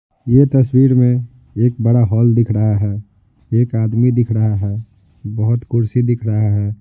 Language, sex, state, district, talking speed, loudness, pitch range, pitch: Hindi, male, Bihar, Patna, 165 wpm, -15 LUFS, 105-120 Hz, 115 Hz